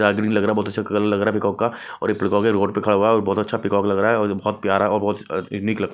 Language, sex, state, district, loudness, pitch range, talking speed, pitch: Hindi, male, Odisha, Nuapada, -20 LUFS, 100-105 Hz, 335 wpm, 105 Hz